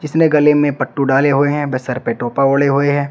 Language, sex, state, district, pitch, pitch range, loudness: Hindi, male, Uttar Pradesh, Shamli, 140 Hz, 135-145 Hz, -15 LUFS